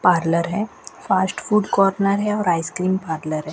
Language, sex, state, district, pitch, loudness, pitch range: Hindi, female, Rajasthan, Bikaner, 185 Hz, -20 LUFS, 165-200 Hz